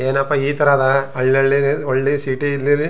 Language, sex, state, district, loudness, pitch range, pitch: Kannada, male, Karnataka, Chamarajanagar, -17 LUFS, 135-145 Hz, 140 Hz